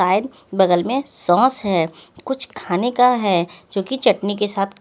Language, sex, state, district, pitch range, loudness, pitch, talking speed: Hindi, female, Haryana, Rohtak, 180-250 Hz, -19 LUFS, 195 Hz, 175 wpm